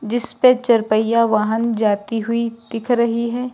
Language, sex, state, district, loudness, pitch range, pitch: Hindi, female, Uttar Pradesh, Lucknow, -18 LUFS, 220-240 Hz, 230 Hz